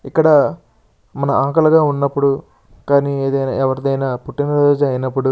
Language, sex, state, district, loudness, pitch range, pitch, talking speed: Telugu, male, Andhra Pradesh, Srikakulam, -16 LUFS, 135-145 Hz, 140 Hz, 100 wpm